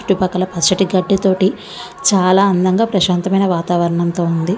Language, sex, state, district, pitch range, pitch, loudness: Telugu, female, Andhra Pradesh, Visakhapatnam, 175-195 Hz, 185 Hz, -15 LUFS